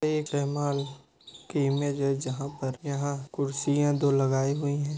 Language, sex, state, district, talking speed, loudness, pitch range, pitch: Hindi, male, Uttar Pradesh, Budaun, 170 wpm, -28 LUFS, 140-145 Hz, 140 Hz